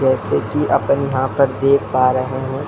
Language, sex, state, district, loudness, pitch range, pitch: Hindi, male, Bihar, Muzaffarpur, -17 LUFS, 130-140 Hz, 130 Hz